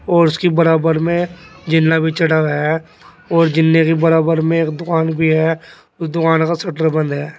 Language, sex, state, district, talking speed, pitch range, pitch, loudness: Hindi, male, Uttar Pradesh, Saharanpur, 195 wpm, 160-165 Hz, 160 Hz, -15 LUFS